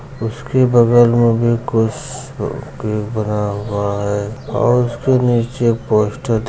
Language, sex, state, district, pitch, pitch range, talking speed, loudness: Hindi, male, Bihar, Muzaffarpur, 115 Hz, 105-125 Hz, 120 wpm, -16 LUFS